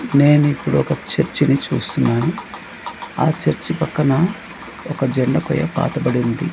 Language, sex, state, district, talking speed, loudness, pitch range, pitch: Telugu, male, Andhra Pradesh, Manyam, 120 wpm, -18 LUFS, 135-200 Hz, 150 Hz